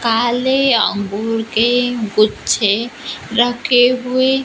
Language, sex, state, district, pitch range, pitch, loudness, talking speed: Hindi, female, Maharashtra, Gondia, 225-250 Hz, 240 Hz, -15 LUFS, 80 wpm